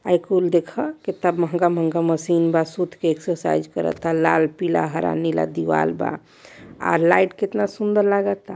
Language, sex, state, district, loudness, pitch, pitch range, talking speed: Hindi, male, Uttar Pradesh, Varanasi, -21 LUFS, 170 Hz, 160-190 Hz, 155 wpm